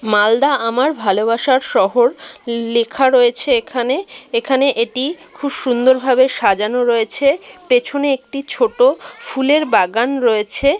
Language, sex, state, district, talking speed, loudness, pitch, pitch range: Bengali, female, West Bengal, Malda, 110 wpm, -15 LUFS, 260 Hz, 235-285 Hz